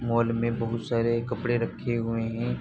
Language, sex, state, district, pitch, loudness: Hindi, male, Uttar Pradesh, Jalaun, 115 Hz, -28 LUFS